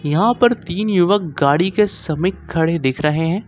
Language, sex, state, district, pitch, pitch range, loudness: Hindi, male, Jharkhand, Ranchi, 175 Hz, 155-205 Hz, -17 LUFS